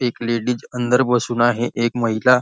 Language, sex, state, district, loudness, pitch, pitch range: Marathi, male, Maharashtra, Nagpur, -19 LUFS, 120 Hz, 120-125 Hz